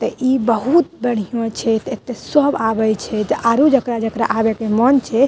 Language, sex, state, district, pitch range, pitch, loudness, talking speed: Maithili, female, Bihar, Madhepura, 225-260 Hz, 230 Hz, -17 LUFS, 170 wpm